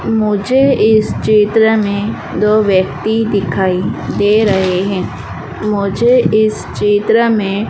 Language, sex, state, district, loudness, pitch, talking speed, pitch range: Hindi, female, Madhya Pradesh, Dhar, -13 LUFS, 210 Hz, 110 wpm, 200-220 Hz